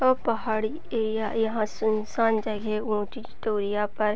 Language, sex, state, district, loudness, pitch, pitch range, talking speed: Hindi, female, Uttar Pradesh, Deoria, -27 LUFS, 220 Hz, 215-225 Hz, 130 wpm